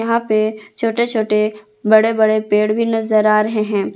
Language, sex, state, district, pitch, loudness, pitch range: Hindi, female, Jharkhand, Palamu, 215 Hz, -16 LUFS, 215-225 Hz